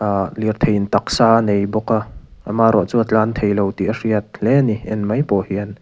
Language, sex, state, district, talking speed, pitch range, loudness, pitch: Mizo, male, Mizoram, Aizawl, 205 wpm, 100-110 Hz, -17 LUFS, 110 Hz